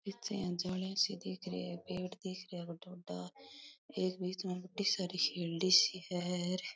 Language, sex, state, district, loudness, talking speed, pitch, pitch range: Rajasthani, female, Rajasthan, Nagaur, -37 LUFS, 170 wpm, 185 Hz, 175-190 Hz